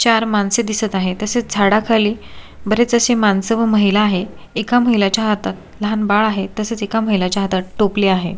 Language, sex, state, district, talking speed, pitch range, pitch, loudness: Marathi, female, Maharashtra, Solapur, 180 wpm, 200-225 Hz, 210 Hz, -16 LUFS